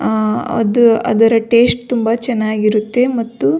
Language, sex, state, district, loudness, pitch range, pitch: Kannada, female, Karnataka, Belgaum, -14 LUFS, 215-240 Hz, 230 Hz